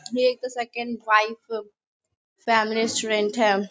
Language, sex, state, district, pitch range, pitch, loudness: Hindi, female, Bihar, Sitamarhi, 215-235 Hz, 225 Hz, -23 LUFS